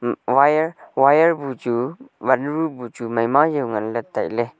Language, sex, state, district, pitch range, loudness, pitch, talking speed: Wancho, male, Arunachal Pradesh, Longding, 120-155 Hz, -20 LUFS, 130 Hz, 170 wpm